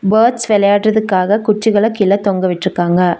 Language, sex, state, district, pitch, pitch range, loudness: Tamil, female, Tamil Nadu, Nilgiris, 205 Hz, 185-215 Hz, -13 LUFS